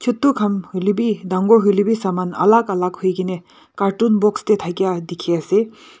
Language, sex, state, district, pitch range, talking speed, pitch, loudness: Nagamese, female, Nagaland, Kohima, 185-215 Hz, 150 wpm, 195 Hz, -18 LUFS